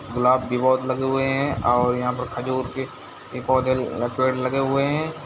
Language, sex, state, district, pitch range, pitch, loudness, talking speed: Hindi, male, Bihar, Gopalganj, 125-135 Hz, 130 Hz, -22 LUFS, 160 wpm